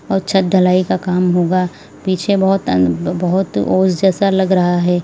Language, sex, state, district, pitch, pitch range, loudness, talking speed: Hindi, female, Uttar Pradesh, Lalitpur, 185 Hz, 180-190 Hz, -15 LUFS, 190 wpm